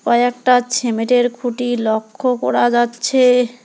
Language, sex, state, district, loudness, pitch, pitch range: Bengali, female, West Bengal, Alipurduar, -16 LUFS, 245 Hz, 240-250 Hz